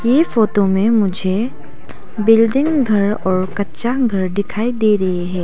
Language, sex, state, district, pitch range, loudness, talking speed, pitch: Hindi, female, Arunachal Pradesh, Papum Pare, 190-230 Hz, -16 LUFS, 145 wpm, 210 Hz